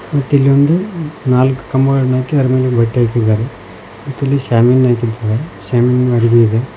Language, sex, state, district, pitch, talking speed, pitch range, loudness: Kannada, male, Karnataka, Koppal, 125 Hz, 150 wpm, 115-140 Hz, -13 LUFS